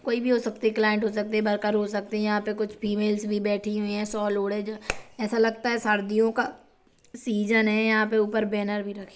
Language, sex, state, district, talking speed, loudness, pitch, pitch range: Hindi, female, Chhattisgarh, Kabirdham, 255 wpm, -26 LUFS, 215 Hz, 210-220 Hz